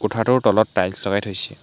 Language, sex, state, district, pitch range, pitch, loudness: Assamese, male, Assam, Hailakandi, 100-115 Hz, 105 Hz, -20 LUFS